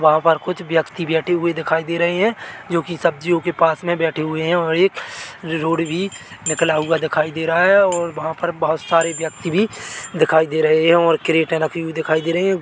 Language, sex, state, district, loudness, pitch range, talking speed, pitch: Hindi, male, Chhattisgarh, Bilaspur, -18 LUFS, 160-175 Hz, 230 wpm, 165 Hz